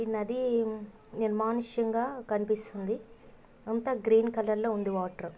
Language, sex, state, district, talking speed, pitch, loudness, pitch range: Telugu, female, Andhra Pradesh, Guntur, 100 wpm, 225 Hz, -31 LUFS, 215-230 Hz